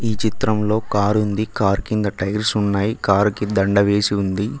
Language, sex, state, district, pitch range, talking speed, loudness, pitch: Telugu, male, Telangana, Mahabubabad, 100-110 Hz, 155 wpm, -19 LUFS, 105 Hz